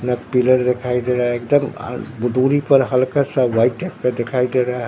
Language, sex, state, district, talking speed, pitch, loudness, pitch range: Hindi, male, Bihar, Katihar, 220 wpm, 125 Hz, -18 LUFS, 125-135 Hz